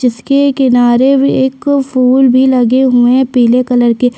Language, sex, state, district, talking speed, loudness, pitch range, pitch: Hindi, female, Chhattisgarh, Sukma, 160 wpm, -10 LUFS, 245-265 Hz, 255 Hz